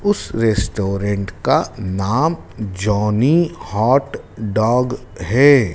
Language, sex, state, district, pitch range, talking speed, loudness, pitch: Hindi, male, Madhya Pradesh, Dhar, 100-130 Hz, 85 wpm, -18 LUFS, 110 Hz